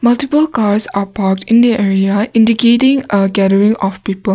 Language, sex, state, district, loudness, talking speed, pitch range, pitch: English, female, Nagaland, Kohima, -12 LUFS, 150 wpm, 195-235 Hz, 210 Hz